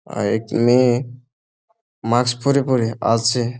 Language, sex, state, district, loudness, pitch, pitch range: Bengali, male, West Bengal, Jhargram, -18 LUFS, 120 Hz, 120-125 Hz